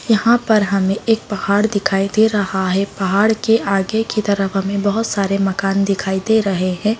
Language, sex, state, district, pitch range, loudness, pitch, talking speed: Hindi, female, Bihar, Bhagalpur, 195-220 Hz, -17 LUFS, 200 Hz, 190 wpm